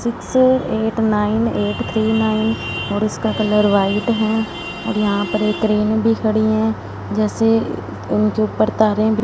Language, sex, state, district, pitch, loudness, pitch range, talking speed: Hindi, female, Punjab, Fazilka, 215 Hz, -18 LUFS, 210-220 Hz, 155 wpm